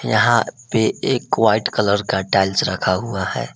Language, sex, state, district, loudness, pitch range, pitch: Hindi, male, Jharkhand, Palamu, -18 LUFS, 95-100 Hz, 95 Hz